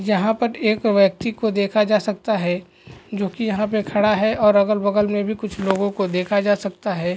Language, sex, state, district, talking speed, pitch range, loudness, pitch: Hindi, male, Bihar, Araria, 215 wpm, 200-215 Hz, -20 LUFS, 205 Hz